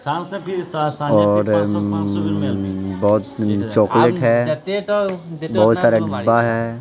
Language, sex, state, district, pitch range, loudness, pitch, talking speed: Hindi, male, Jharkhand, Deoghar, 105-150 Hz, -18 LUFS, 115 Hz, 70 wpm